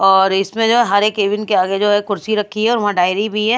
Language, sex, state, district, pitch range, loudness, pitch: Hindi, female, Bihar, Patna, 195-215 Hz, -15 LUFS, 205 Hz